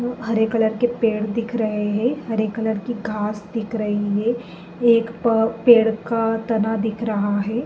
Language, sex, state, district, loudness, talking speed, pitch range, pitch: Hindi, female, Uttar Pradesh, Jalaun, -21 LUFS, 170 wpm, 215-230 Hz, 225 Hz